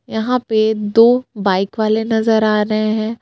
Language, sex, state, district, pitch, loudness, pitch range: Hindi, female, Jharkhand, Palamu, 220 Hz, -15 LUFS, 215-225 Hz